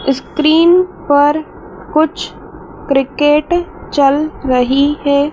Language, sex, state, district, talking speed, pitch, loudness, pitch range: Hindi, female, Madhya Pradesh, Dhar, 80 wpm, 295 Hz, -13 LUFS, 275-310 Hz